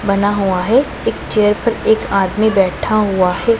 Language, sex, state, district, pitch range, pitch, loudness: Hindi, female, Punjab, Pathankot, 195-220 Hz, 205 Hz, -15 LUFS